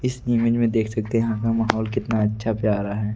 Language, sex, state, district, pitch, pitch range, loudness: Hindi, male, Delhi, New Delhi, 110 Hz, 110-115 Hz, -22 LUFS